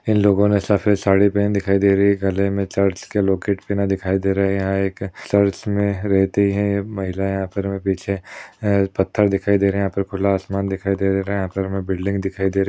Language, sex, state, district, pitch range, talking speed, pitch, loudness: Hindi, male, Uttar Pradesh, Jalaun, 95-100 Hz, 240 wpm, 100 Hz, -20 LUFS